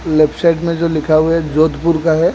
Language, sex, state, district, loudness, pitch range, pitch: Hindi, male, Odisha, Khordha, -14 LUFS, 155-165 Hz, 160 Hz